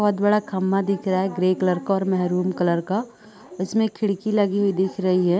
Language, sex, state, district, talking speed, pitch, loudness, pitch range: Hindi, female, Chhattisgarh, Korba, 210 wpm, 190 Hz, -22 LUFS, 185-205 Hz